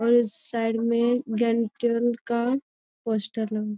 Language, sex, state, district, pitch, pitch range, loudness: Hindi, female, Bihar, Jamui, 235 Hz, 225-240 Hz, -25 LUFS